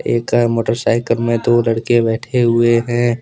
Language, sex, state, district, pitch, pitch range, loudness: Hindi, male, Jharkhand, Deoghar, 115 Hz, 115-120 Hz, -15 LUFS